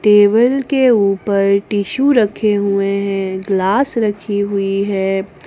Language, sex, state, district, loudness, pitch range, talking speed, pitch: Hindi, female, Jharkhand, Ranchi, -15 LUFS, 195-220 Hz, 120 wpm, 200 Hz